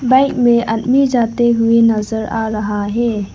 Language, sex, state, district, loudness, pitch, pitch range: Hindi, female, Arunachal Pradesh, Lower Dibang Valley, -15 LUFS, 230 Hz, 220-240 Hz